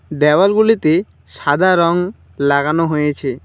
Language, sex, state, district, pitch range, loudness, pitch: Bengali, male, West Bengal, Alipurduar, 145-185 Hz, -15 LUFS, 155 Hz